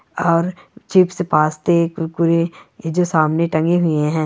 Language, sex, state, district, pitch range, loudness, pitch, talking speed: Hindi, female, Bihar, Gopalganj, 155-175 Hz, -17 LUFS, 165 Hz, 140 wpm